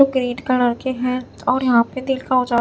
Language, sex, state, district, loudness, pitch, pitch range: Hindi, female, Chhattisgarh, Raipur, -19 LUFS, 255 Hz, 245-260 Hz